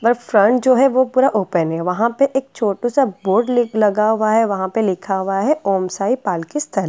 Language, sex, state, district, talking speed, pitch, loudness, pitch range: Hindi, female, Bihar, Katihar, 245 wpm, 220 Hz, -17 LUFS, 195-255 Hz